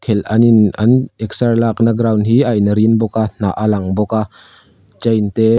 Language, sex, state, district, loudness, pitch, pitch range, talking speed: Mizo, male, Mizoram, Aizawl, -14 LUFS, 110 Hz, 105-115 Hz, 215 wpm